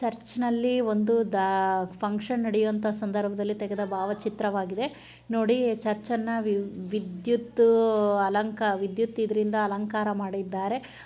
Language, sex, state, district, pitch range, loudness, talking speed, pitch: Kannada, female, Karnataka, Chamarajanagar, 200-230 Hz, -27 LUFS, 75 wpm, 215 Hz